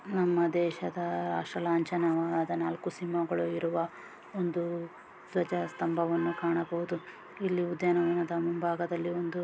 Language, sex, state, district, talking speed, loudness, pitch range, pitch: Kannada, female, Karnataka, Gulbarga, 95 wpm, -31 LUFS, 170-175 Hz, 170 Hz